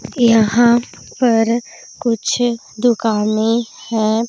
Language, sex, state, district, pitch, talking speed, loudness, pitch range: Hindi, female, Punjab, Pathankot, 230 Hz, 70 wpm, -16 LUFS, 220-240 Hz